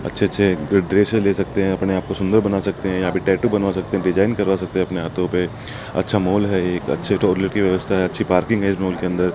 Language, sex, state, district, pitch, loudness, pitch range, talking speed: Hindi, male, Rajasthan, Jaipur, 95 Hz, -19 LUFS, 90-100 Hz, 270 wpm